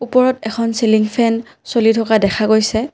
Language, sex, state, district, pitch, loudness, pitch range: Assamese, female, Assam, Kamrup Metropolitan, 225 Hz, -15 LUFS, 220-235 Hz